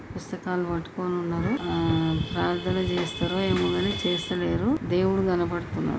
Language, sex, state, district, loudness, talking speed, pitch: Telugu, female, Telangana, Nalgonda, -26 LUFS, 110 wpm, 170 Hz